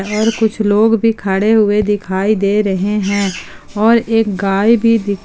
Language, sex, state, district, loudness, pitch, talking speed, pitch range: Hindi, female, Jharkhand, Palamu, -14 LUFS, 210 Hz, 160 wpm, 200-225 Hz